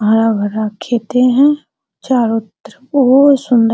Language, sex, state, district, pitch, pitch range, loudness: Hindi, female, Bihar, Araria, 240 Hz, 225-270 Hz, -13 LUFS